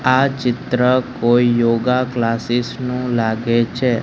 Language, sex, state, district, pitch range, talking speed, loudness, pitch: Gujarati, male, Gujarat, Gandhinagar, 115-125 Hz, 120 wpm, -17 LUFS, 120 Hz